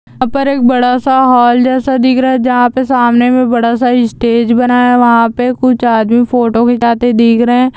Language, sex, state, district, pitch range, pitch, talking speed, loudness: Hindi, female, Andhra Pradesh, Chittoor, 235-255 Hz, 245 Hz, 210 wpm, -10 LUFS